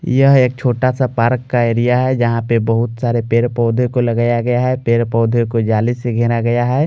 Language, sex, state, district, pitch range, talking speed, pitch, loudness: Hindi, male, Bihar, Patna, 115-125 Hz, 190 wpm, 120 Hz, -15 LUFS